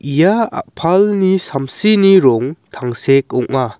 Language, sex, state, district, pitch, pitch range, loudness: Garo, male, Meghalaya, West Garo Hills, 155 Hz, 130-195 Hz, -14 LUFS